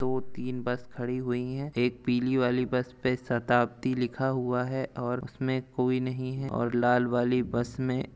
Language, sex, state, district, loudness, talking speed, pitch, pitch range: Hindi, male, Uttar Pradesh, Jalaun, -29 LUFS, 190 wpm, 125 Hz, 125-130 Hz